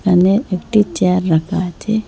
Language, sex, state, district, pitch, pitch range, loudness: Bengali, female, Assam, Hailakandi, 185 Hz, 180-210 Hz, -16 LUFS